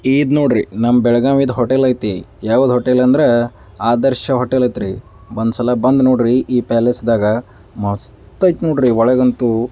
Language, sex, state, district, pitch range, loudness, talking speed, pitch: Kannada, male, Karnataka, Belgaum, 115-130 Hz, -15 LUFS, 155 wpm, 120 Hz